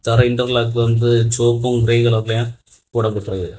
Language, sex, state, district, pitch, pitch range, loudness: Tamil, male, Tamil Nadu, Kanyakumari, 115 Hz, 115-120 Hz, -17 LUFS